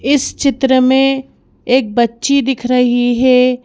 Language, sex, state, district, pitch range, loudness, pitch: Hindi, female, Madhya Pradesh, Bhopal, 245-270 Hz, -13 LUFS, 255 Hz